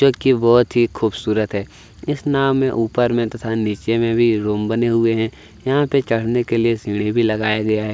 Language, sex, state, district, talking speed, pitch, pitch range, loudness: Hindi, male, Chhattisgarh, Kabirdham, 220 wpm, 115 Hz, 110-120 Hz, -18 LUFS